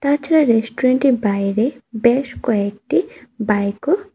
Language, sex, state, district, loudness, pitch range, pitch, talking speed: Bengali, female, Tripura, West Tripura, -18 LUFS, 215-275 Hz, 240 Hz, 130 wpm